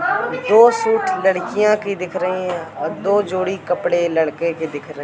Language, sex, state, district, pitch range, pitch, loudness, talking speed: Hindi, male, Madhya Pradesh, Katni, 170-210 Hz, 185 Hz, -18 LUFS, 190 wpm